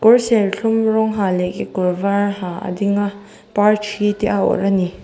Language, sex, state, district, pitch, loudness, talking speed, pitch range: Mizo, female, Mizoram, Aizawl, 200 Hz, -18 LUFS, 190 wpm, 190-215 Hz